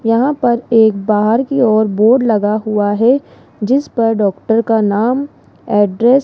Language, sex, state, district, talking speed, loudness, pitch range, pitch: Hindi, female, Rajasthan, Jaipur, 165 wpm, -13 LUFS, 210-240 Hz, 225 Hz